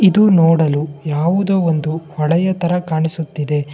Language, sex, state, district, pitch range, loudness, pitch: Kannada, male, Karnataka, Bangalore, 155-180 Hz, -16 LUFS, 160 Hz